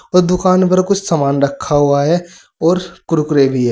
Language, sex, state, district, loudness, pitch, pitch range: Hindi, male, Uttar Pradesh, Saharanpur, -14 LUFS, 170 Hz, 140-180 Hz